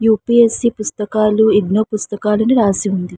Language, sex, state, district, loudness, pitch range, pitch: Telugu, female, Andhra Pradesh, Srikakulam, -15 LUFS, 205-225 Hz, 215 Hz